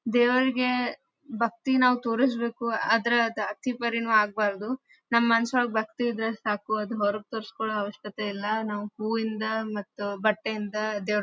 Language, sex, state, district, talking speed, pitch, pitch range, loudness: Kannada, female, Karnataka, Dharwad, 130 wpm, 220 Hz, 210-235 Hz, -27 LUFS